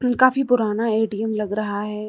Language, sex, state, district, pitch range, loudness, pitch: Hindi, female, Uttar Pradesh, Lucknow, 210-245 Hz, -21 LUFS, 220 Hz